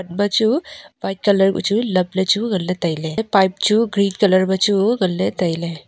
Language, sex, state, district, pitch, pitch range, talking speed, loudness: Wancho, female, Arunachal Pradesh, Longding, 195 Hz, 185-220 Hz, 195 wpm, -18 LUFS